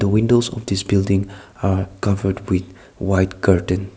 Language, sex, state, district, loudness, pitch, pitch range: English, male, Nagaland, Kohima, -19 LUFS, 95 Hz, 95-100 Hz